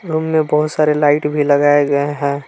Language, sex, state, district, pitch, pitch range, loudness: Hindi, male, Jharkhand, Palamu, 150 Hz, 145-155 Hz, -15 LUFS